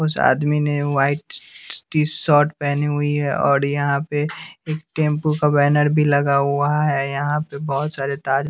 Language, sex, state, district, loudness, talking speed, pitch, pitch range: Hindi, male, Bihar, West Champaran, -19 LUFS, 175 wpm, 145 Hz, 140-150 Hz